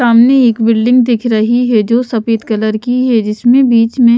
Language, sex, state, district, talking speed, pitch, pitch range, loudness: Hindi, female, Chhattisgarh, Raipur, 200 wpm, 235 Hz, 225-245 Hz, -11 LUFS